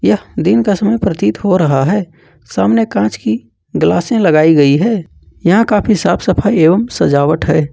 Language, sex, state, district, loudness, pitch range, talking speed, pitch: Hindi, male, Jharkhand, Ranchi, -12 LUFS, 145-210 Hz, 165 wpm, 175 Hz